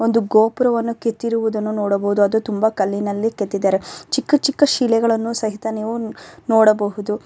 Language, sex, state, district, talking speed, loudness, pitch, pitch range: Kannada, female, Karnataka, Bellary, 115 wpm, -18 LUFS, 220 Hz, 205-230 Hz